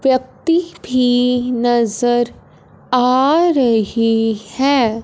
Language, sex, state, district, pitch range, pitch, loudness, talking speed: Hindi, female, Punjab, Fazilka, 230-260 Hz, 245 Hz, -16 LUFS, 70 wpm